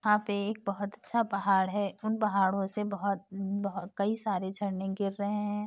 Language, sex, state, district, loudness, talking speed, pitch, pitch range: Hindi, female, Uttar Pradesh, Etah, -31 LUFS, 190 wpm, 200 Hz, 195-210 Hz